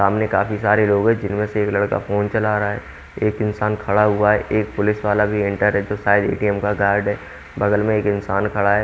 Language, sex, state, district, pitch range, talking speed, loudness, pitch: Hindi, male, Haryana, Jhajjar, 100-105 Hz, 225 wpm, -19 LUFS, 105 Hz